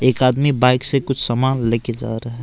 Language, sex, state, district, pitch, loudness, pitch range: Hindi, male, Assam, Kamrup Metropolitan, 125 Hz, -17 LUFS, 120-130 Hz